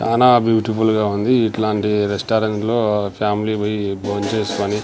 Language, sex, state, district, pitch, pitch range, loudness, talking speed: Telugu, male, Andhra Pradesh, Sri Satya Sai, 105 Hz, 105-110 Hz, -18 LUFS, 110 wpm